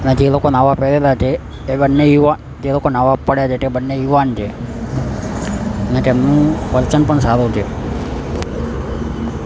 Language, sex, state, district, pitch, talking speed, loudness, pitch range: Gujarati, male, Gujarat, Gandhinagar, 130 Hz, 145 wpm, -16 LUFS, 115-140 Hz